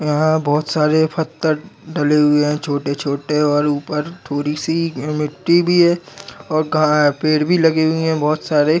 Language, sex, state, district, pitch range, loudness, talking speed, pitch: Hindi, male, Maharashtra, Nagpur, 150-160 Hz, -17 LUFS, 175 wpm, 155 Hz